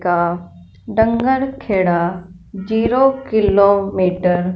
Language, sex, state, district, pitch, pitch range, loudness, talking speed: Hindi, female, Punjab, Fazilka, 195 Hz, 175-225 Hz, -16 LUFS, 80 wpm